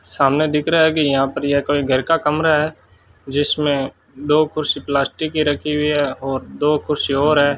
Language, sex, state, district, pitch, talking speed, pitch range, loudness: Hindi, male, Rajasthan, Bikaner, 145 Hz, 205 wpm, 140-150 Hz, -18 LUFS